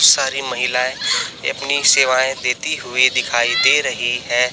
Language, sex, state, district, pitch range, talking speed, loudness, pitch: Hindi, male, Chhattisgarh, Raipur, 125-135 Hz, 130 wpm, -16 LUFS, 125 Hz